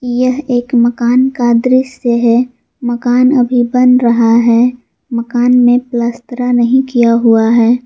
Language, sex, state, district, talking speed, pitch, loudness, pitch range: Hindi, female, Jharkhand, Garhwa, 135 wpm, 245 Hz, -11 LUFS, 235-250 Hz